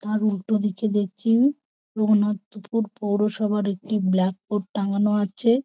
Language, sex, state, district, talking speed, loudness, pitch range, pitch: Bengali, female, West Bengal, Purulia, 115 wpm, -23 LUFS, 200-215 Hz, 210 Hz